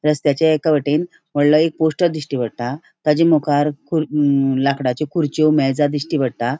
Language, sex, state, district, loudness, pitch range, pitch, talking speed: Konkani, female, Goa, North and South Goa, -18 LUFS, 140-155 Hz, 150 Hz, 145 wpm